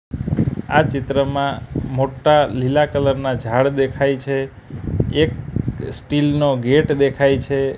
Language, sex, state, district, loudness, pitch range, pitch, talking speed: Gujarati, male, Gujarat, Gandhinagar, -18 LUFS, 130-140 Hz, 135 Hz, 115 wpm